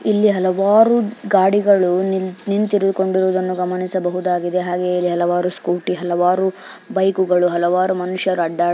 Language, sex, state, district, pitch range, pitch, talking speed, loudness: Kannada, female, Karnataka, Bijapur, 180-195 Hz, 185 Hz, 105 wpm, -17 LUFS